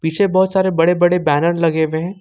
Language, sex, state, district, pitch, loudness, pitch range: Hindi, male, Jharkhand, Ranchi, 175 Hz, -15 LUFS, 160-185 Hz